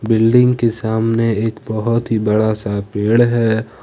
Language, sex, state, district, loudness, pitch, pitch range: Hindi, male, Jharkhand, Ranchi, -16 LUFS, 110 Hz, 110-115 Hz